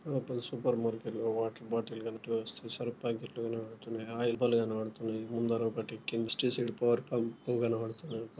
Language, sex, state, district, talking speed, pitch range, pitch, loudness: Telugu, male, Telangana, Nalgonda, 170 wpm, 115-120 Hz, 115 Hz, -35 LUFS